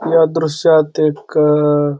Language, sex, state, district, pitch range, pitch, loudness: Marathi, male, Maharashtra, Pune, 150-160 Hz, 155 Hz, -14 LUFS